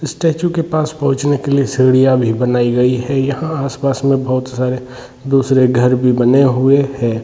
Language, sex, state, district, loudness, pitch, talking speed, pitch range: Hindi, male, Jharkhand, Sahebganj, -14 LUFS, 135 Hz, 180 wpm, 125-140 Hz